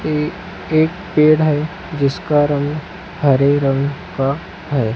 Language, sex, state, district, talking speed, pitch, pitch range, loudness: Hindi, male, Chhattisgarh, Raipur, 120 wpm, 150 Hz, 140-160 Hz, -17 LUFS